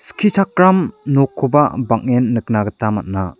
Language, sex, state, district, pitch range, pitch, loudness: Garo, male, Meghalaya, South Garo Hills, 110-150 Hz, 130 Hz, -16 LUFS